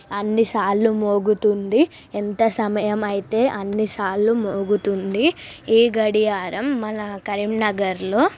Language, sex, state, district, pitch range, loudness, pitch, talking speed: Telugu, female, Telangana, Karimnagar, 200-225 Hz, -20 LUFS, 210 Hz, 85 wpm